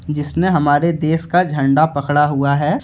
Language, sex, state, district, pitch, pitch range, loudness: Hindi, male, Jharkhand, Deoghar, 150 Hz, 145-165 Hz, -16 LUFS